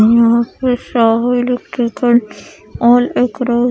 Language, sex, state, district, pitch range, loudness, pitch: Hindi, female, Odisha, Khordha, 235-245 Hz, -14 LUFS, 240 Hz